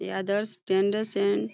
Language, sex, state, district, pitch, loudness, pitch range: Hindi, female, Uttar Pradesh, Deoria, 200 Hz, -27 LUFS, 190-205 Hz